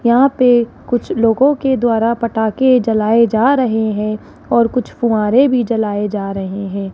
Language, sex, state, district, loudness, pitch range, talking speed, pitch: Hindi, female, Rajasthan, Jaipur, -15 LUFS, 215-250 Hz, 165 wpm, 230 Hz